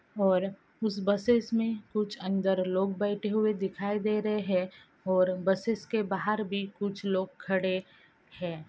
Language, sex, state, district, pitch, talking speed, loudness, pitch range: Hindi, female, Andhra Pradesh, Anantapur, 200 Hz, 150 wpm, -30 LUFS, 190-210 Hz